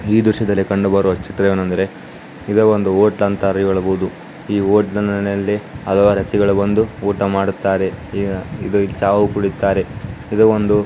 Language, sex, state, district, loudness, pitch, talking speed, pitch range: Kannada, male, Karnataka, Bijapur, -17 LUFS, 100 Hz, 135 wpm, 95-105 Hz